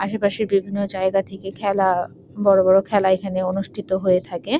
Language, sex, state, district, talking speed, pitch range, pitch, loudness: Bengali, female, West Bengal, Jalpaiguri, 170 wpm, 190-200 Hz, 195 Hz, -20 LUFS